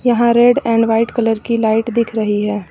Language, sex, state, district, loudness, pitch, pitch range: Hindi, female, Uttar Pradesh, Lucknow, -15 LUFS, 230 Hz, 220-235 Hz